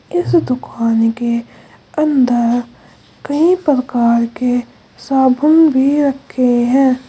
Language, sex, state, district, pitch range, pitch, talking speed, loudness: Hindi, female, Uttar Pradesh, Saharanpur, 240-290 Hz, 260 Hz, 95 wpm, -14 LUFS